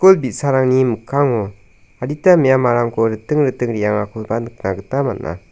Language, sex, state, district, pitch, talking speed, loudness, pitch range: Garo, male, Meghalaya, South Garo Hills, 120 Hz, 120 wpm, -17 LUFS, 105-135 Hz